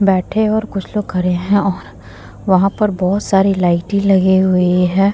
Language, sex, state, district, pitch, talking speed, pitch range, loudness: Hindi, female, Bihar, Vaishali, 190 Hz, 185 wpm, 180-200 Hz, -15 LUFS